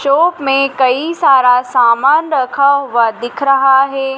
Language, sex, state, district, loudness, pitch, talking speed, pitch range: Hindi, female, Madhya Pradesh, Dhar, -12 LUFS, 270 Hz, 145 wpm, 250-280 Hz